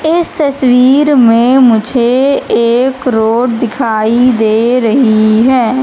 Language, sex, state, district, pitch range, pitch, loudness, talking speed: Hindi, female, Madhya Pradesh, Katni, 230-265 Hz, 245 Hz, -9 LUFS, 105 wpm